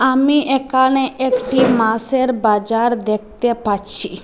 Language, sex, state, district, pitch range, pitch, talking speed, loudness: Bengali, female, Assam, Hailakandi, 215-260 Hz, 245 Hz, 100 wpm, -16 LUFS